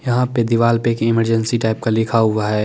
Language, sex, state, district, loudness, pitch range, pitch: Hindi, male, Chandigarh, Chandigarh, -17 LUFS, 110-115 Hz, 115 Hz